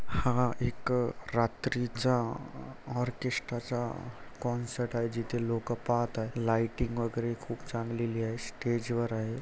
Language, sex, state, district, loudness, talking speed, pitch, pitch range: Marathi, male, Maharashtra, Chandrapur, -33 LUFS, 110 wpm, 120 Hz, 115-125 Hz